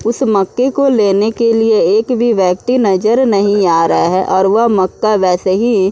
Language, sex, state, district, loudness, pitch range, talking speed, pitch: Hindi, female, Uttar Pradesh, Muzaffarnagar, -12 LUFS, 190-235 Hz, 205 wpm, 215 Hz